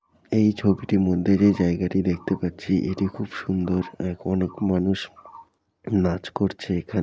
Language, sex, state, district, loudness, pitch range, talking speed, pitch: Bengali, male, West Bengal, Jalpaiguri, -24 LUFS, 90-100 Hz, 130 wpm, 95 Hz